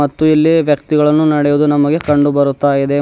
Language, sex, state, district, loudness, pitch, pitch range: Kannada, female, Karnataka, Bidar, -12 LUFS, 150 Hz, 145-155 Hz